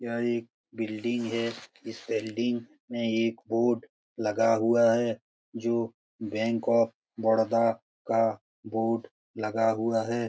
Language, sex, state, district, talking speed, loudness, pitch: Hindi, male, Bihar, Lakhisarai, 120 wpm, -28 LUFS, 115 Hz